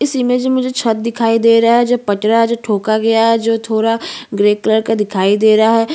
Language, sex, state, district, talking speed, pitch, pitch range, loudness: Hindi, female, Chhattisgarh, Bastar, 40 wpm, 225 Hz, 220-235 Hz, -13 LUFS